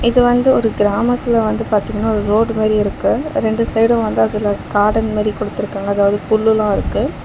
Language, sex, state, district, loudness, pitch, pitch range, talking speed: Tamil, female, Tamil Nadu, Chennai, -16 LUFS, 215 Hz, 205-230 Hz, 175 wpm